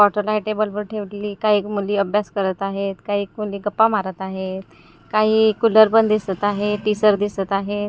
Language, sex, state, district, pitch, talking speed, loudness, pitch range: Marathi, female, Maharashtra, Gondia, 205 Hz, 165 wpm, -20 LUFS, 200-215 Hz